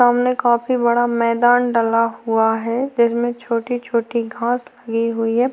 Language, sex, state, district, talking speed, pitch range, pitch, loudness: Hindi, female, Uttarakhand, Tehri Garhwal, 140 wpm, 230-245 Hz, 235 Hz, -18 LUFS